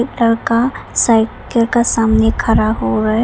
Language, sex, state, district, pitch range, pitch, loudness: Hindi, female, Arunachal Pradesh, Papum Pare, 220-235 Hz, 225 Hz, -14 LUFS